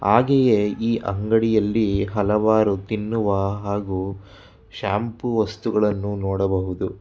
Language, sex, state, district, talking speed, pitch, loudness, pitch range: Kannada, male, Karnataka, Bangalore, 75 wpm, 105 Hz, -21 LUFS, 100-110 Hz